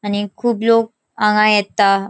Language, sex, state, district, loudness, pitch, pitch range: Konkani, female, Goa, North and South Goa, -16 LUFS, 210 Hz, 205-225 Hz